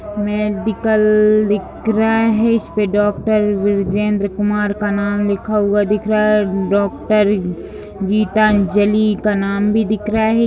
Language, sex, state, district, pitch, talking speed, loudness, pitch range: Hindi, female, Bihar, Madhepura, 210 Hz, 135 wpm, -16 LUFS, 205-215 Hz